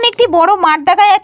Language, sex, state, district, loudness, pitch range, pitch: Bengali, female, Jharkhand, Jamtara, -10 LUFS, 340-470 Hz, 395 Hz